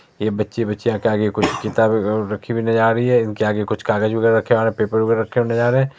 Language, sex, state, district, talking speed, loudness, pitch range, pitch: Maithili, male, Bihar, Supaul, 310 wpm, -18 LUFS, 105-115 Hz, 110 Hz